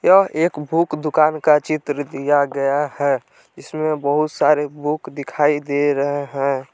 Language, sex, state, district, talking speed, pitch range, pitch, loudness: Hindi, male, Jharkhand, Palamu, 150 wpm, 140-155 Hz, 145 Hz, -19 LUFS